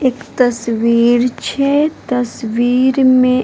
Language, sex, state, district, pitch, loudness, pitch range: Maithili, female, Bihar, Madhepura, 250 Hz, -14 LUFS, 240-260 Hz